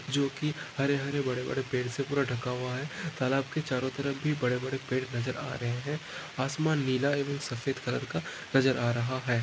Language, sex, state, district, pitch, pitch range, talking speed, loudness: Hindi, male, Maharashtra, Pune, 135 Hz, 125-140 Hz, 195 wpm, -31 LUFS